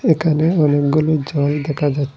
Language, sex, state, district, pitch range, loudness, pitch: Bengali, male, Assam, Hailakandi, 145-155 Hz, -17 LUFS, 150 Hz